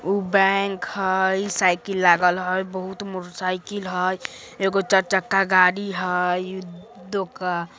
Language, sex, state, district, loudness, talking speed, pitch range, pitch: Bajjika, female, Bihar, Vaishali, -22 LUFS, 115 wpm, 180-195 Hz, 190 Hz